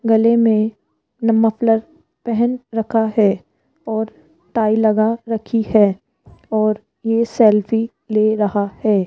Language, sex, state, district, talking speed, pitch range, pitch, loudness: Hindi, female, Rajasthan, Jaipur, 110 wpm, 215-230 Hz, 225 Hz, -17 LUFS